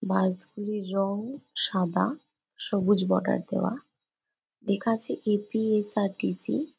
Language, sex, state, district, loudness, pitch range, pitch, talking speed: Bengali, female, West Bengal, Jalpaiguri, -28 LUFS, 195-220 Hz, 205 Hz, 140 wpm